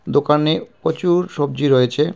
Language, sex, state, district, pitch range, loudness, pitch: Bengali, male, West Bengal, Cooch Behar, 145-170 Hz, -18 LUFS, 150 Hz